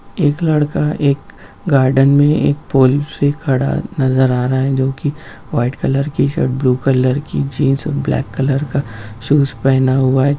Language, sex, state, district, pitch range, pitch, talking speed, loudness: Hindi, male, Bihar, Jamui, 130-145 Hz, 135 Hz, 165 wpm, -15 LUFS